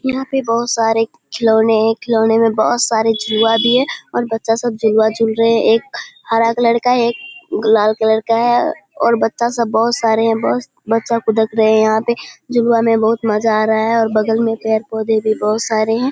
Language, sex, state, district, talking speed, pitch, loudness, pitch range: Hindi, female, Bihar, Kishanganj, 215 wpm, 225 Hz, -15 LUFS, 220-235 Hz